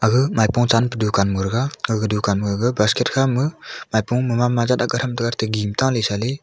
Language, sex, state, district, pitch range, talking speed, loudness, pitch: Wancho, male, Arunachal Pradesh, Longding, 110-125 Hz, 140 wpm, -20 LUFS, 115 Hz